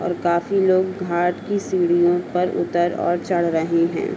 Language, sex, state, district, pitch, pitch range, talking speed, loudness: Hindi, female, Uttar Pradesh, Hamirpur, 175 Hz, 175-185 Hz, 175 wpm, -20 LUFS